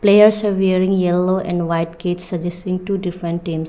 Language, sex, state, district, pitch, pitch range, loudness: English, female, Arunachal Pradesh, Lower Dibang Valley, 180 Hz, 175-190 Hz, -18 LUFS